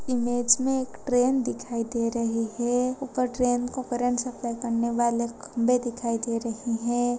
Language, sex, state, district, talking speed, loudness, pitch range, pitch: Hindi, female, Uttar Pradesh, Jyotiba Phule Nagar, 165 wpm, -26 LUFS, 235-250 Hz, 240 Hz